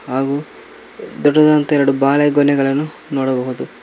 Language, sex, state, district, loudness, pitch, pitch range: Kannada, male, Karnataka, Koppal, -15 LUFS, 145 Hz, 135-145 Hz